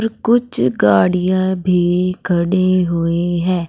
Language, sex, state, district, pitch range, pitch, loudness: Hindi, female, Uttar Pradesh, Saharanpur, 170-185 Hz, 180 Hz, -16 LUFS